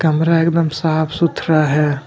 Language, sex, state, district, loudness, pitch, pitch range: Hindi, male, Jharkhand, Deoghar, -16 LUFS, 160 Hz, 155-165 Hz